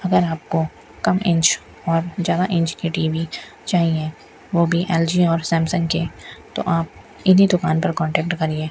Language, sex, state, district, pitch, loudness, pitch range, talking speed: Hindi, female, Rajasthan, Bikaner, 165 Hz, -20 LUFS, 160-175 Hz, 160 wpm